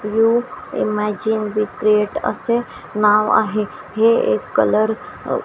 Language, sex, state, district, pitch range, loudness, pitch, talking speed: Marathi, female, Maharashtra, Washim, 210-230 Hz, -18 LUFS, 215 Hz, 110 wpm